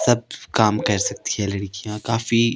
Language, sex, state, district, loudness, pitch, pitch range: Hindi, male, Himachal Pradesh, Shimla, -22 LUFS, 110 Hz, 100-115 Hz